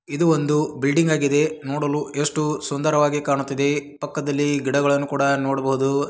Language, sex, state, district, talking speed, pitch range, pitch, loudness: Kannada, male, Karnataka, Dharwad, 130 wpm, 140-150 Hz, 145 Hz, -21 LUFS